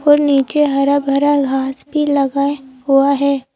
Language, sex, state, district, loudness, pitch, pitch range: Hindi, female, Madhya Pradesh, Bhopal, -15 LUFS, 280 Hz, 275-290 Hz